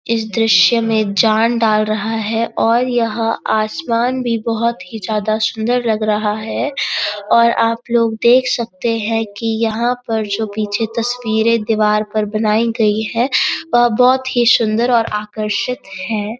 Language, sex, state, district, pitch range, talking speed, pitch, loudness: Hindi, female, Uttarakhand, Uttarkashi, 215-235 Hz, 155 wpm, 225 Hz, -16 LUFS